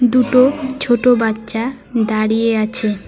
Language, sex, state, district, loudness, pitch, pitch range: Bengali, female, West Bengal, Alipurduar, -15 LUFS, 235 Hz, 220-255 Hz